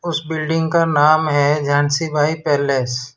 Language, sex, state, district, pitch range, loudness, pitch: Hindi, male, Gujarat, Valsad, 145-160 Hz, -17 LUFS, 150 Hz